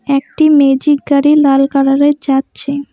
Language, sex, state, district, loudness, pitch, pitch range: Bengali, female, West Bengal, Alipurduar, -11 LUFS, 280 Hz, 275-295 Hz